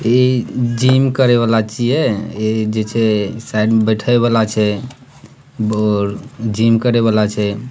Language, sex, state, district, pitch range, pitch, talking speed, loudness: Hindi, male, Bihar, Purnia, 110-125 Hz, 115 Hz, 115 wpm, -15 LUFS